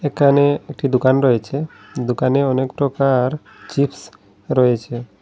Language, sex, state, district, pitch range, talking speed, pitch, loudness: Bengali, male, Assam, Hailakandi, 125-145 Hz, 105 wpm, 135 Hz, -18 LUFS